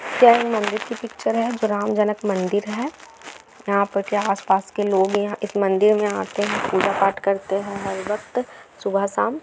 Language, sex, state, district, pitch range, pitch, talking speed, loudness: Hindi, female, Bihar, Gaya, 195-215 Hz, 205 Hz, 205 wpm, -21 LUFS